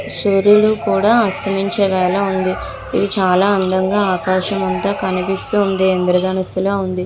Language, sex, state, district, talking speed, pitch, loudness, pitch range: Telugu, female, Andhra Pradesh, Visakhapatnam, 120 wpm, 195 Hz, -16 LUFS, 185-200 Hz